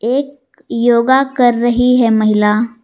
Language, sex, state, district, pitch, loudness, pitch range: Hindi, female, Jharkhand, Garhwa, 240 Hz, -12 LUFS, 230-255 Hz